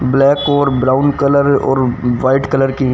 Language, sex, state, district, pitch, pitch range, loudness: Hindi, male, Haryana, Rohtak, 135 Hz, 130-140 Hz, -13 LUFS